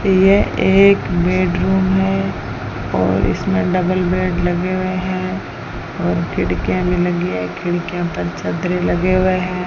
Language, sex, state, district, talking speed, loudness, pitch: Hindi, female, Rajasthan, Bikaner, 135 wpm, -17 LUFS, 175 Hz